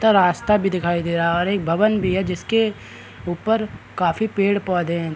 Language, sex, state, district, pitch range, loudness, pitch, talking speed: Hindi, male, Bihar, Araria, 170-210 Hz, -20 LUFS, 185 Hz, 200 wpm